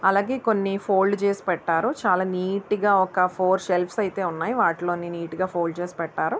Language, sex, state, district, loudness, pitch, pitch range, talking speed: Telugu, female, Andhra Pradesh, Visakhapatnam, -23 LUFS, 185 Hz, 175-200 Hz, 180 wpm